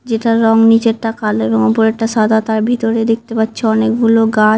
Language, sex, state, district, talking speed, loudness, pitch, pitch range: Bengali, female, West Bengal, Dakshin Dinajpur, 185 wpm, -13 LUFS, 225 Hz, 220-225 Hz